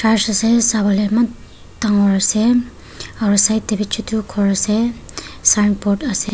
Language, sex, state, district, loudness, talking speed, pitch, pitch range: Nagamese, female, Nagaland, Dimapur, -16 LUFS, 140 wpm, 215 Hz, 205-225 Hz